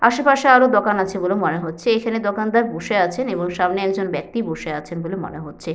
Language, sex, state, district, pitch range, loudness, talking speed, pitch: Bengali, female, West Bengal, Jhargram, 175-230 Hz, -19 LUFS, 210 wpm, 195 Hz